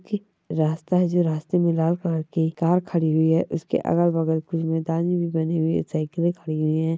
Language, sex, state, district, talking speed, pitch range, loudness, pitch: Hindi, male, Chhattisgarh, Bastar, 200 wpm, 160-175 Hz, -23 LUFS, 165 Hz